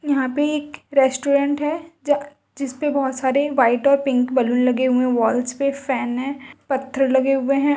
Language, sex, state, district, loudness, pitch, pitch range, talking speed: Hindi, female, Uttar Pradesh, Budaun, -20 LUFS, 275 Hz, 260-285 Hz, 195 wpm